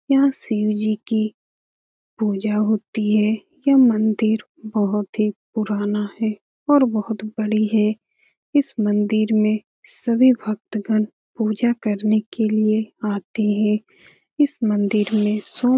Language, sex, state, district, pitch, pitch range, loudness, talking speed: Hindi, female, Bihar, Lakhisarai, 215 Hz, 210-225 Hz, -20 LUFS, 125 wpm